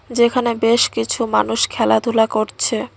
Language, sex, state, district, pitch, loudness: Bengali, female, West Bengal, Cooch Behar, 220 Hz, -17 LUFS